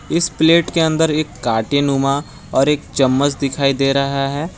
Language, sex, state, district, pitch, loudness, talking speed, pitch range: Hindi, male, Jharkhand, Garhwa, 140 Hz, -16 LUFS, 170 wpm, 135-155 Hz